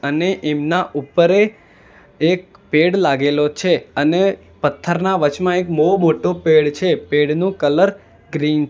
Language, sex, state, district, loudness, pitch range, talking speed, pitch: Gujarati, male, Gujarat, Valsad, -17 LUFS, 150-185 Hz, 140 wpm, 165 Hz